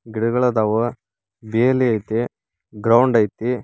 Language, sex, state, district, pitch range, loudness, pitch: Kannada, male, Karnataka, Koppal, 105-120 Hz, -19 LUFS, 115 Hz